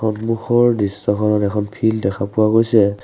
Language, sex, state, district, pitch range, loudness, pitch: Assamese, male, Assam, Sonitpur, 100-110 Hz, -17 LUFS, 105 Hz